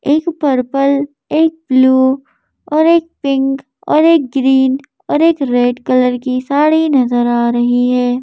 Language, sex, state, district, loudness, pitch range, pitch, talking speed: Hindi, female, Madhya Pradesh, Bhopal, -13 LUFS, 255-305 Hz, 270 Hz, 145 wpm